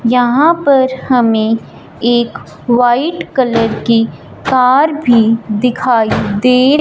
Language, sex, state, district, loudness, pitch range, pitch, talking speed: Hindi, female, Punjab, Fazilka, -12 LUFS, 230-260 Hz, 245 Hz, 95 wpm